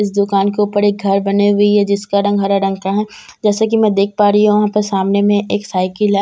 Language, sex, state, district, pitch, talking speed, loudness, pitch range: Hindi, female, Bihar, Katihar, 205 Hz, 310 wpm, -14 LUFS, 200-210 Hz